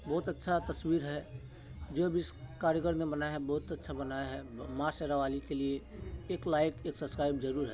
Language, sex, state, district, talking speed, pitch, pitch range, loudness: Maithili, male, Bihar, Supaul, 200 wpm, 150 Hz, 140-165 Hz, -35 LUFS